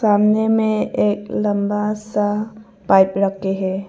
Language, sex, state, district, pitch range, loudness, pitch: Hindi, female, Arunachal Pradesh, Papum Pare, 200-215 Hz, -18 LUFS, 205 Hz